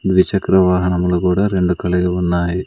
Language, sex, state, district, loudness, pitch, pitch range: Telugu, male, Andhra Pradesh, Sri Satya Sai, -16 LUFS, 90 Hz, 90-95 Hz